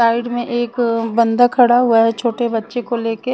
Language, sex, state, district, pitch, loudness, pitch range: Hindi, female, Punjab, Kapurthala, 235 Hz, -16 LUFS, 230-245 Hz